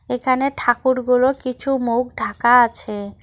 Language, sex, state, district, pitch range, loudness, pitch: Bengali, female, West Bengal, Cooch Behar, 240-260 Hz, -18 LUFS, 250 Hz